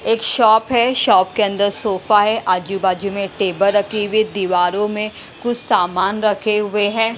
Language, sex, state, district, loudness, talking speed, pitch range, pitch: Hindi, female, Punjab, Pathankot, -17 LUFS, 165 wpm, 195-220 Hz, 205 Hz